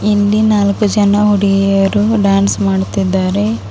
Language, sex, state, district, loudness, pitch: Kannada, female, Karnataka, Bidar, -12 LUFS, 200 Hz